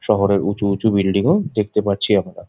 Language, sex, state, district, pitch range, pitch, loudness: Bengali, male, West Bengal, Jhargram, 100-105 Hz, 100 Hz, -18 LUFS